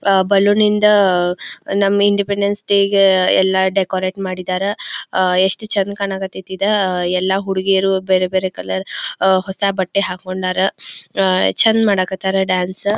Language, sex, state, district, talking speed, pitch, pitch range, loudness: Kannada, female, Karnataka, Belgaum, 135 wpm, 190 Hz, 185-200 Hz, -16 LUFS